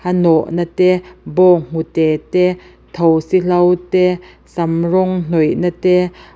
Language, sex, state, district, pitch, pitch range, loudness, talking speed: Mizo, female, Mizoram, Aizawl, 180 Hz, 165-180 Hz, -15 LUFS, 105 wpm